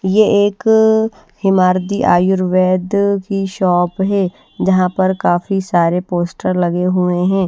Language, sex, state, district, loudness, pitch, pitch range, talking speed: Hindi, female, Haryana, Rohtak, -15 LUFS, 190 Hz, 180-200 Hz, 120 wpm